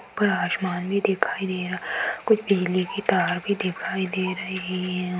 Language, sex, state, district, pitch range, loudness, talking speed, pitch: Hindi, male, Bihar, Lakhisarai, 185-195 Hz, -25 LUFS, 185 wpm, 185 Hz